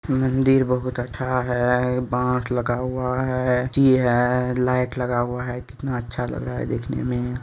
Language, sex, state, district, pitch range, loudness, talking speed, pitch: Hindi, male, Bihar, Araria, 125-130 Hz, -22 LUFS, 170 wpm, 125 Hz